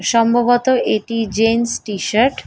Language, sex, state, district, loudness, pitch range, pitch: Bengali, female, West Bengal, Dakshin Dinajpur, -16 LUFS, 220-240 Hz, 230 Hz